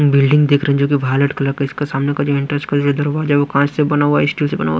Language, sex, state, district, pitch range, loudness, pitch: Hindi, male, Punjab, Pathankot, 140-145 Hz, -16 LUFS, 145 Hz